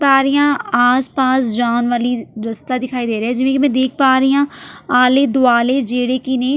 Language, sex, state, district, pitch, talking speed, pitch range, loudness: Punjabi, female, Delhi, New Delhi, 255 Hz, 220 wpm, 245-270 Hz, -15 LUFS